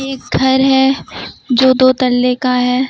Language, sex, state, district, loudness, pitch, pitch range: Hindi, female, Uttar Pradesh, Lucknow, -13 LUFS, 260 Hz, 250-265 Hz